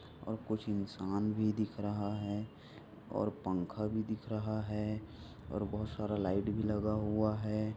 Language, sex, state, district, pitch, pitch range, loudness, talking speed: Hindi, male, Maharashtra, Sindhudurg, 105 Hz, 105-110 Hz, -37 LUFS, 160 wpm